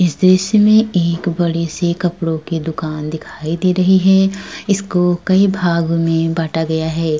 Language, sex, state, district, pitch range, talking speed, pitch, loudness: Hindi, female, Uttar Pradesh, Jalaun, 165-185 Hz, 165 wpm, 175 Hz, -15 LUFS